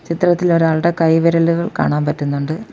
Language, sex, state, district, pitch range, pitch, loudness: Malayalam, female, Kerala, Kollam, 160-170 Hz, 165 Hz, -16 LUFS